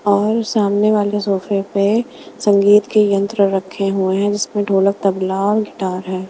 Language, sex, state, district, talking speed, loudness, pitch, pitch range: Hindi, female, Maharashtra, Mumbai Suburban, 170 wpm, -16 LUFS, 200 Hz, 195-205 Hz